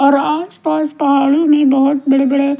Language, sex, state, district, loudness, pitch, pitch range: Hindi, female, Himachal Pradesh, Shimla, -13 LUFS, 280 Hz, 275-305 Hz